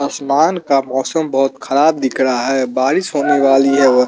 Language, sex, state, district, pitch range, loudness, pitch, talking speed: Hindi, male, Chandigarh, Chandigarh, 130-145 Hz, -15 LUFS, 135 Hz, 190 wpm